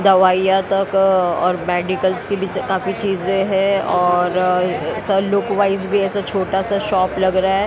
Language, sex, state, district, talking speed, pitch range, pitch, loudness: Hindi, female, Maharashtra, Mumbai Suburban, 140 wpm, 185-195 Hz, 190 Hz, -17 LUFS